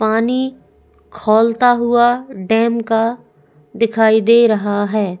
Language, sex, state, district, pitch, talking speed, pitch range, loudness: Hindi, female, Goa, North and South Goa, 225 Hz, 105 wpm, 215-235 Hz, -15 LUFS